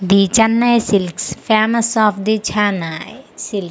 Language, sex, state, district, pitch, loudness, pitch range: Telugu, female, Andhra Pradesh, Manyam, 210 Hz, -15 LUFS, 195-225 Hz